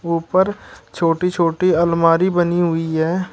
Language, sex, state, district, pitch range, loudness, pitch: Hindi, male, Uttar Pradesh, Shamli, 165-180 Hz, -17 LUFS, 170 Hz